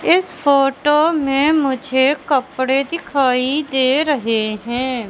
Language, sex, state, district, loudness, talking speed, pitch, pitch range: Hindi, male, Madhya Pradesh, Katni, -16 LUFS, 105 wpm, 270 Hz, 260-295 Hz